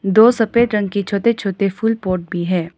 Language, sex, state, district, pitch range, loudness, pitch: Hindi, female, Arunachal Pradesh, Lower Dibang Valley, 185-225 Hz, -17 LUFS, 200 Hz